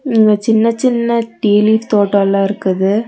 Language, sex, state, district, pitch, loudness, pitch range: Tamil, female, Tamil Nadu, Nilgiris, 220 Hz, -13 LUFS, 205-230 Hz